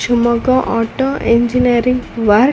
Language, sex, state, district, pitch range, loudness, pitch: Kannada, female, Karnataka, Shimoga, 235-255 Hz, -14 LUFS, 240 Hz